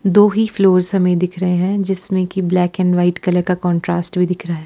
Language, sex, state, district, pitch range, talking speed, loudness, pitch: Hindi, female, Himachal Pradesh, Shimla, 175-190 Hz, 245 wpm, -16 LUFS, 180 Hz